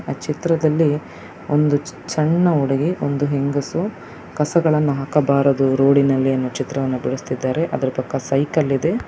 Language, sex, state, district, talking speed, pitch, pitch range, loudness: Kannada, male, Karnataka, Dakshina Kannada, 125 wpm, 145 Hz, 135-155 Hz, -19 LUFS